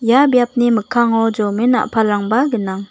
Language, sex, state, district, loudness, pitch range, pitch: Garo, female, Meghalaya, West Garo Hills, -15 LUFS, 215-245 Hz, 230 Hz